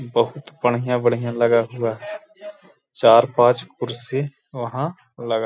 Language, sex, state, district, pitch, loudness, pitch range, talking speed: Hindi, male, Bihar, Gaya, 120 Hz, -20 LUFS, 120-140 Hz, 110 wpm